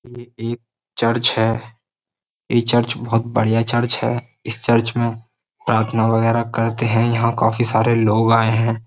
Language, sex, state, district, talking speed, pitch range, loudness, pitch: Hindi, male, Uttar Pradesh, Jyotiba Phule Nagar, 155 wpm, 115-120 Hz, -18 LUFS, 115 Hz